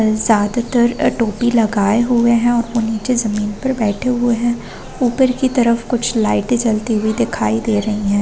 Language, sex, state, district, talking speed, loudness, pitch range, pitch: Hindi, female, Chhattisgarh, Korba, 175 wpm, -16 LUFS, 215-240 Hz, 230 Hz